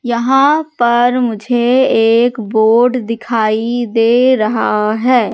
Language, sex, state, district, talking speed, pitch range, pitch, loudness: Hindi, female, Madhya Pradesh, Katni, 100 wpm, 225-250 Hz, 235 Hz, -13 LUFS